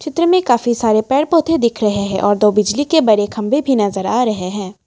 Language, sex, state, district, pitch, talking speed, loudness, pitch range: Hindi, female, Assam, Kamrup Metropolitan, 225 Hz, 260 wpm, -15 LUFS, 205-280 Hz